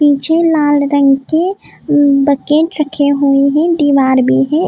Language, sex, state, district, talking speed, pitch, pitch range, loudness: Hindi, female, Maharashtra, Mumbai Suburban, 140 wpm, 290 Hz, 280-315 Hz, -12 LUFS